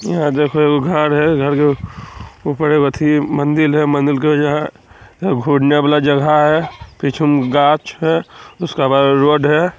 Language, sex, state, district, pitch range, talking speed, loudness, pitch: Magahi, male, Bihar, Jamui, 145-150 Hz, 165 wpm, -14 LUFS, 150 Hz